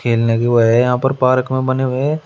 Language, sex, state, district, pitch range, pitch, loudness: Hindi, male, Uttar Pradesh, Shamli, 120-130 Hz, 130 Hz, -15 LUFS